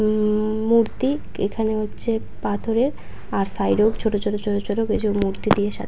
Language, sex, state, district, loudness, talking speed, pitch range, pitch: Bengali, female, West Bengal, Purulia, -22 LUFS, 175 wpm, 205-225 Hz, 215 Hz